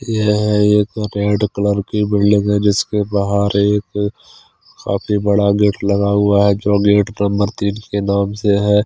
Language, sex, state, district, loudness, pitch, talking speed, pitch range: Hindi, male, Chandigarh, Chandigarh, -16 LUFS, 100 Hz, 160 wpm, 100-105 Hz